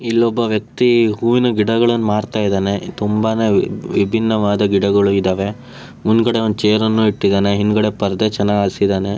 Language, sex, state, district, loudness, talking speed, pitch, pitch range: Kannada, male, Karnataka, Shimoga, -16 LUFS, 125 wpm, 105 Hz, 100-115 Hz